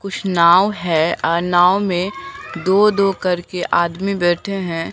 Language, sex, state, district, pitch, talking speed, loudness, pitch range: Hindi, female, Bihar, Katihar, 180 Hz, 145 wpm, -17 LUFS, 170-195 Hz